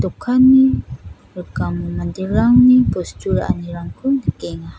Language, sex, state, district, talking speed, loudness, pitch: Garo, female, Meghalaya, South Garo Hills, 75 wpm, -16 LUFS, 180 Hz